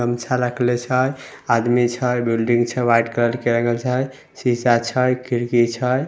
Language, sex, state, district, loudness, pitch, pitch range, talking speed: Maithili, male, Bihar, Samastipur, -19 LUFS, 120 Hz, 120-125 Hz, 160 wpm